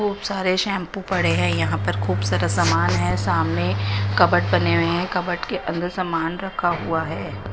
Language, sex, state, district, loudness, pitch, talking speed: Hindi, female, Odisha, Nuapada, -21 LUFS, 100 Hz, 185 wpm